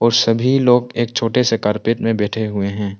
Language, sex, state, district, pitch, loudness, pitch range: Hindi, male, Arunachal Pradesh, Longding, 115 Hz, -17 LUFS, 105-120 Hz